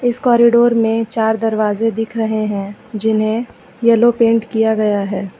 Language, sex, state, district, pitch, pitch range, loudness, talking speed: Hindi, female, Uttar Pradesh, Lucknow, 225 Hz, 215-230 Hz, -15 LUFS, 155 wpm